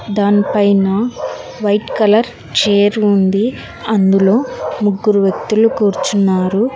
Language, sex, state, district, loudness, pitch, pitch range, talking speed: Telugu, female, Telangana, Hyderabad, -14 LUFS, 205 Hz, 195-215 Hz, 90 wpm